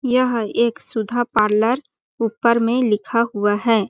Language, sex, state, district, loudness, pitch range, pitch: Hindi, female, Chhattisgarh, Balrampur, -19 LUFS, 220-245 Hz, 230 Hz